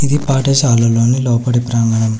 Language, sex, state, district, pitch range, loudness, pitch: Telugu, male, Telangana, Hyderabad, 115-135 Hz, -13 LUFS, 120 Hz